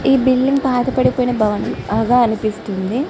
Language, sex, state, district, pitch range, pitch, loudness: Telugu, female, Andhra Pradesh, Chittoor, 220-260 Hz, 245 Hz, -17 LUFS